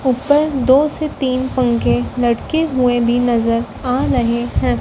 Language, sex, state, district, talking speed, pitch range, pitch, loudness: Hindi, female, Madhya Pradesh, Dhar, 150 wpm, 240-270 Hz, 250 Hz, -16 LUFS